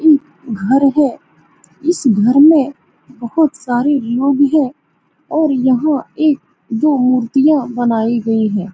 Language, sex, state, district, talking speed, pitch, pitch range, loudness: Hindi, female, Bihar, Saran, 125 wpm, 270 Hz, 240-295 Hz, -14 LUFS